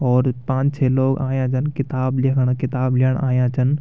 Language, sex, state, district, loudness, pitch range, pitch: Garhwali, male, Uttarakhand, Tehri Garhwal, -19 LUFS, 130-135 Hz, 130 Hz